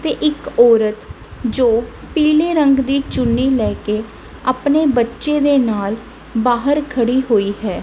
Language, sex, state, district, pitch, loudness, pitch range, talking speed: Punjabi, female, Punjab, Kapurthala, 250 Hz, -16 LUFS, 225-285 Hz, 130 wpm